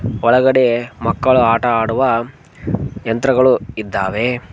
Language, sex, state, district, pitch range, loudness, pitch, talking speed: Kannada, male, Karnataka, Koppal, 115-130 Hz, -16 LUFS, 120 Hz, 65 wpm